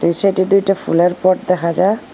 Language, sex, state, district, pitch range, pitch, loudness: Bengali, female, Assam, Hailakandi, 175-195 Hz, 185 Hz, -15 LUFS